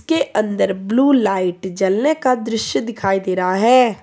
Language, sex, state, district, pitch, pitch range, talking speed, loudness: Hindi, female, Jharkhand, Deoghar, 215 Hz, 190-255 Hz, 165 wpm, -17 LUFS